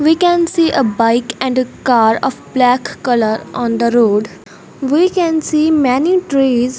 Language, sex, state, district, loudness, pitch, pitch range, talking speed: English, female, Punjab, Fazilka, -14 LUFS, 255 Hz, 235-315 Hz, 170 wpm